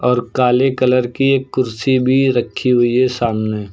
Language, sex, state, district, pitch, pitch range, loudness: Hindi, male, Uttar Pradesh, Lucknow, 125 Hz, 120-130 Hz, -15 LUFS